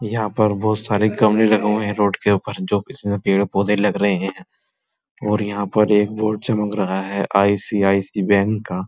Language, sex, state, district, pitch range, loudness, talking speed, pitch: Hindi, male, Uttar Pradesh, Muzaffarnagar, 100-105 Hz, -19 LUFS, 195 wpm, 105 Hz